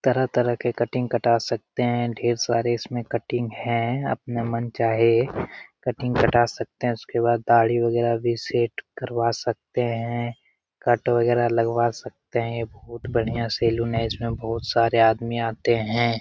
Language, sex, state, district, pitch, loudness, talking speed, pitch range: Hindi, male, Bihar, Jamui, 120 Hz, -23 LUFS, 155 wpm, 115-120 Hz